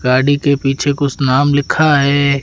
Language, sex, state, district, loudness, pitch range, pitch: Hindi, male, Rajasthan, Jaisalmer, -13 LUFS, 135-145 Hz, 140 Hz